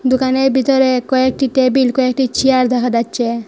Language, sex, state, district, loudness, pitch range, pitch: Bengali, female, Assam, Hailakandi, -14 LUFS, 250-265 Hz, 260 Hz